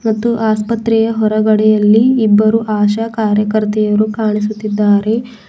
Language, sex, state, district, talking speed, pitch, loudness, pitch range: Kannada, female, Karnataka, Bidar, 75 wpm, 215 Hz, -13 LUFS, 210-225 Hz